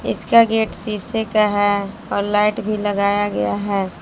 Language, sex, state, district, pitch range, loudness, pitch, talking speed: Hindi, female, Jharkhand, Palamu, 200-215 Hz, -18 LUFS, 205 Hz, 165 wpm